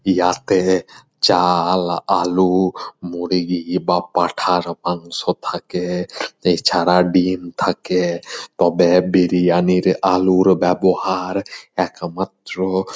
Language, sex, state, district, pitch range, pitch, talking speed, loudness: Bengali, male, West Bengal, Purulia, 90-95 Hz, 90 Hz, 80 wpm, -18 LUFS